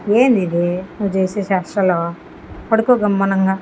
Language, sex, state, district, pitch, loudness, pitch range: Telugu, female, Andhra Pradesh, Annamaya, 190 Hz, -17 LUFS, 180-205 Hz